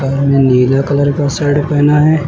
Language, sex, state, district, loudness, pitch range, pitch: Hindi, male, Uttar Pradesh, Lucknow, -12 LUFS, 135-145 Hz, 145 Hz